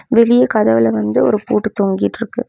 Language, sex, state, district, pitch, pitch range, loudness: Tamil, female, Tamil Nadu, Namakkal, 210 Hz, 150-235 Hz, -14 LUFS